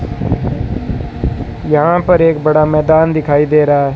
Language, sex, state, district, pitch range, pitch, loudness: Hindi, male, Rajasthan, Bikaner, 150-160 Hz, 155 Hz, -13 LUFS